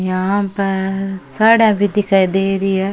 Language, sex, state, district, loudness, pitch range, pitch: Rajasthani, female, Rajasthan, Churu, -15 LUFS, 190-205 Hz, 195 Hz